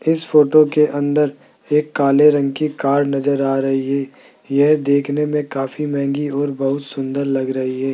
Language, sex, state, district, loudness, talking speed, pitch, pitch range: Hindi, male, Rajasthan, Jaipur, -17 LUFS, 180 wpm, 140 Hz, 135-150 Hz